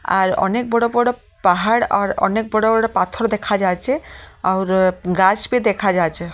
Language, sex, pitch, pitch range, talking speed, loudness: Bengali, female, 200 Hz, 190-230 Hz, 160 wpm, -18 LUFS